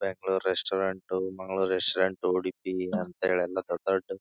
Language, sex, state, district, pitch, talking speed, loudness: Kannada, male, Karnataka, Bijapur, 95 Hz, 130 wpm, -29 LUFS